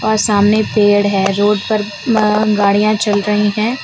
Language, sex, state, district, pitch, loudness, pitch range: Hindi, female, Uttar Pradesh, Lucknow, 210 Hz, -13 LUFS, 205-215 Hz